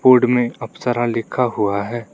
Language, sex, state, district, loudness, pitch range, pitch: Hindi, male, Arunachal Pradesh, Lower Dibang Valley, -19 LUFS, 110-125 Hz, 120 Hz